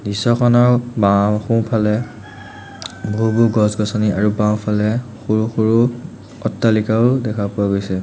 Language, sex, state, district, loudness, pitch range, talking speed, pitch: Assamese, male, Assam, Sonitpur, -17 LUFS, 105-115 Hz, 105 wpm, 110 Hz